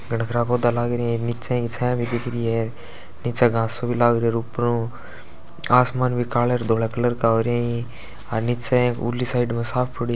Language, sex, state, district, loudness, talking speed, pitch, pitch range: Hindi, male, Rajasthan, Churu, -22 LUFS, 235 wpm, 120 Hz, 115-120 Hz